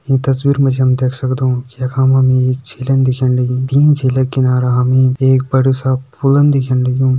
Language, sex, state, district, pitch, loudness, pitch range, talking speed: Hindi, male, Uttarakhand, Tehri Garhwal, 130 Hz, -14 LUFS, 130-135 Hz, 210 wpm